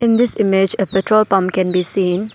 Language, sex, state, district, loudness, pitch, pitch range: English, female, Arunachal Pradesh, Papum Pare, -16 LUFS, 195 Hz, 185-215 Hz